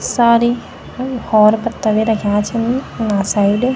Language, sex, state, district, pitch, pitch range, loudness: Garhwali, female, Uttarakhand, Tehri Garhwal, 225 Hz, 210-240 Hz, -15 LUFS